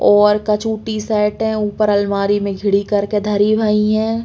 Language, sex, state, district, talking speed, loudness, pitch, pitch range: Bundeli, female, Uttar Pradesh, Hamirpur, 200 wpm, -16 LUFS, 210 Hz, 205-215 Hz